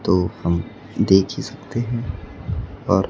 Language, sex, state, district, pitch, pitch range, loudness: Hindi, male, Maharashtra, Gondia, 100 Hz, 90-120 Hz, -22 LUFS